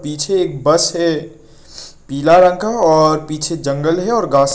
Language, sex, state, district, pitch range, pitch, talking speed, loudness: Hindi, male, Nagaland, Kohima, 150-175 Hz, 155 Hz, 170 wpm, -14 LUFS